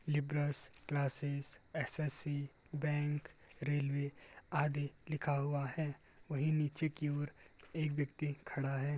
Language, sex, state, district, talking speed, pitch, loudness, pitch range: Hindi, male, Uttar Pradesh, Gorakhpur, 115 wpm, 145 Hz, -39 LUFS, 140-150 Hz